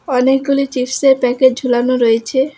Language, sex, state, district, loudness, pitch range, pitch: Bengali, female, West Bengal, Alipurduar, -14 LUFS, 250-270 Hz, 260 Hz